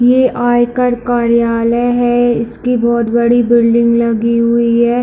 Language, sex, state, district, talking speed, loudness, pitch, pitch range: Hindi, female, Chhattisgarh, Bilaspur, 145 wpm, -12 LUFS, 235 Hz, 235-245 Hz